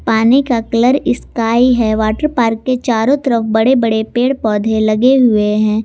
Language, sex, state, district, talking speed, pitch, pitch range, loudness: Hindi, female, Jharkhand, Garhwa, 175 wpm, 230 Hz, 220-255 Hz, -13 LUFS